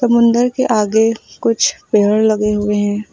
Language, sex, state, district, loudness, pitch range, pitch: Hindi, female, Uttar Pradesh, Lucknow, -15 LUFS, 210-230 Hz, 220 Hz